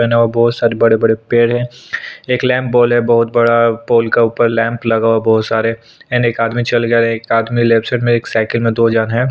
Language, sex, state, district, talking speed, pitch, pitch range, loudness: Hindi, male, Chhattisgarh, Sukma, 250 wpm, 115 Hz, 115-120 Hz, -14 LUFS